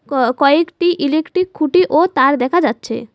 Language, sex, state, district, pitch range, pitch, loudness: Bengali, female, West Bengal, Alipurduar, 260-350 Hz, 300 Hz, -15 LUFS